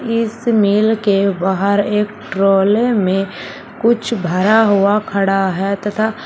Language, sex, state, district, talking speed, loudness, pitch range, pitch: Hindi, male, Uttar Pradesh, Shamli, 125 wpm, -15 LUFS, 195-220 Hz, 205 Hz